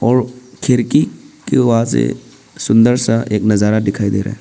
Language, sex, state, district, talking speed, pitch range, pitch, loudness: Hindi, male, Arunachal Pradesh, Papum Pare, 175 wpm, 105-125 Hz, 115 Hz, -15 LUFS